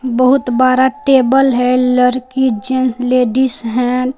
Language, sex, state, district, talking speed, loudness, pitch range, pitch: Hindi, female, Jharkhand, Palamu, 130 wpm, -13 LUFS, 250-260 Hz, 255 Hz